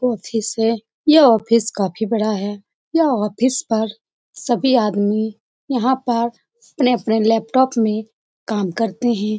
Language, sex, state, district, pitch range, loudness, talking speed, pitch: Hindi, female, Bihar, Saran, 215-250 Hz, -18 LUFS, 135 wpm, 225 Hz